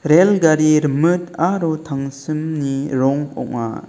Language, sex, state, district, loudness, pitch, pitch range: Garo, male, Meghalaya, South Garo Hills, -18 LUFS, 155 Hz, 140-165 Hz